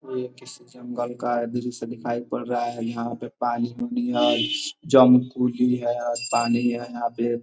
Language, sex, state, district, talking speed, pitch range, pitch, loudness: Hindi, male, Bihar, Gopalganj, 135 wpm, 120-125 Hz, 120 Hz, -24 LUFS